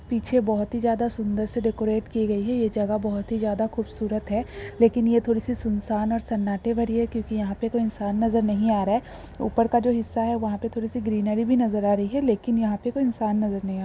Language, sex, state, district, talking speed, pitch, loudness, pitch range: Hindi, female, Andhra Pradesh, Guntur, 265 wpm, 225 Hz, -24 LUFS, 215-235 Hz